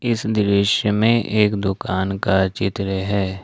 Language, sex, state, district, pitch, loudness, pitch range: Hindi, male, Jharkhand, Ranchi, 100 Hz, -19 LUFS, 95-105 Hz